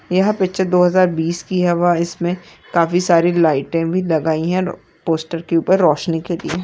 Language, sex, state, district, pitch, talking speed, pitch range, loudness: Hindi, female, Chhattisgarh, Raigarh, 175 Hz, 200 wpm, 165-180 Hz, -17 LUFS